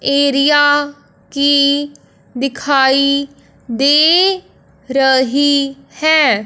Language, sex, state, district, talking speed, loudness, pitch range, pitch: Hindi, female, Punjab, Fazilka, 55 wpm, -13 LUFS, 270-290 Hz, 280 Hz